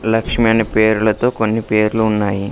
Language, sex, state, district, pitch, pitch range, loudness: Telugu, male, Andhra Pradesh, Sri Satya Sai, 110 Hz, 110-115 Hz, -15 LUFS